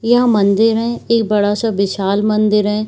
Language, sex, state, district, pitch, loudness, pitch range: Hindi, female, Chhattisgarh, Bilaspur, 215 Hz, -15 LUFS, 205-225 Hz